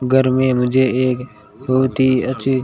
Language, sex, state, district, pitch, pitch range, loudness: Hindi, male, Rajasthan, Bikaner, 130 Hz, 125-130 Hz, -17 LUFS